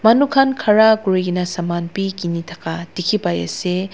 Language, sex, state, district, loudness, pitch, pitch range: Nagamese, female, Nagaland, Dimapur, -18 LUFS, 180 Hz, 170-215 Hz